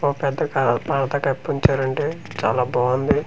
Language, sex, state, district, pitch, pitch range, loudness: Telugu, male, Andhra Pradesh, Manyam, 135 Hz, 125-140 Hz, -21 LUFS